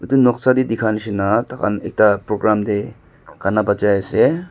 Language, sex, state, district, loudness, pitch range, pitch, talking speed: Nagamese, male, Nagaland, Dimapur, -18 LUFS, 100-120 Hz, 105 Hz, 160 wpm